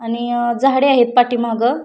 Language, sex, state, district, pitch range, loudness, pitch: Marathi, female, Maharashtra, Pune, 235-255 Hz, -15 LUFS, 240 Hz